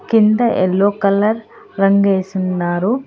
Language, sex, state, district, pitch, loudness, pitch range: Telugu, female, Telangana, Hyderabad, 200 Hz, -15 LUFS, 190-220 Hz